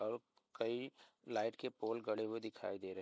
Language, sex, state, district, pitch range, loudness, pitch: Hindi, male, Bihar, Begusarai, 110-115 Hz, -43 LUFS, 110 Hz